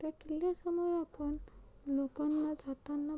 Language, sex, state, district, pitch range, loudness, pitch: Marathi, female, Maharashtra, Chandrapur, 290-320 Hz, -37 LUFS, 305 Hz